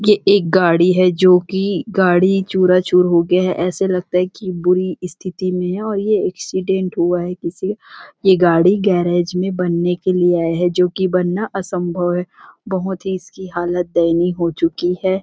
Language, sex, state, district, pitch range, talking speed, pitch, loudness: Hindi, female, Chhattisgarh, Rajnandgaon, 175-190 Hz, 180 wpm, 180 Hz, -17 LUFS